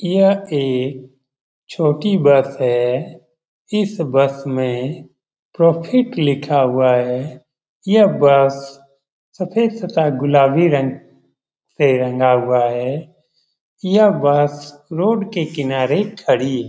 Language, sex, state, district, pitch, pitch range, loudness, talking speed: Hindi, male, Bihar, Jamui, 145 Hz, 130-170 Hz, -16 LUFS, 105 wpm